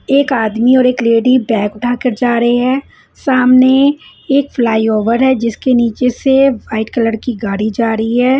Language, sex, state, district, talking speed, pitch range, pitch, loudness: Hindi, female, Punjab, Fazilka, 180 wpm, 230-260 Hz, 245 Hz, -13 LUFS